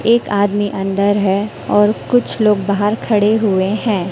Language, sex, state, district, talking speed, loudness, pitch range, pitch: Hindi, female, Chhattisgarh, Raipur, 160 wpm, -15 LUFS, 200-215 Hz, 205 Hz